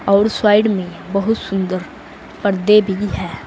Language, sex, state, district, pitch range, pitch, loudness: Hindi, female, Uttar Pradesh, Saharanpur, 190-210 Hz, 200 Hz, -17 LUFS